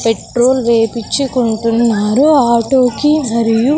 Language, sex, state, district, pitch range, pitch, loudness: Telugu, female, Andhra Pradesh, Sri Satya Sai, 230-260 Hz, 235 Hz, -13 LUFS